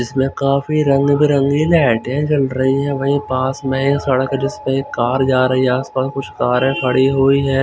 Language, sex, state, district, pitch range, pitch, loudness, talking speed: Hindi, male, Chandigarh, Chandigarh, 130-140 Hz, 135 Hz, -16 LUFS, 180 wpm